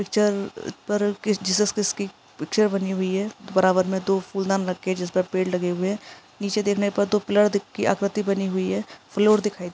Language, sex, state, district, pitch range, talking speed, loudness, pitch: Hindi, female, Chhattisgarh, Raigarh, 185-205 Hz, 240 wpm, -23 LUFS, 200 Hz